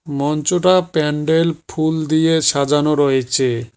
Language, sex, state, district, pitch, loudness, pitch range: Bengali, male, West Bengal, Cooch Behar, 150 Hz, -16 LUFS, 140-160 Hz